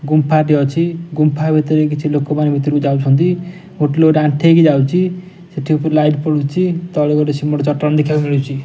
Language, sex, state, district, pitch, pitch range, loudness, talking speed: Odia, male, Odisha, Nuapada, 150 Hz, 145-165 Hz, -14 LUFS, 195 wpm